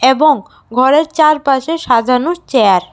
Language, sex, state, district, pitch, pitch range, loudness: Bengali, female, Tripura, West Tripura, 280 Hz, 255-310 Hz, -12 LUFS